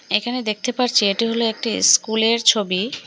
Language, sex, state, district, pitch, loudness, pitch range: Bengali, female, Assam, Hailakandi, 225 Hz, -18 LUFS, 215-235 Hz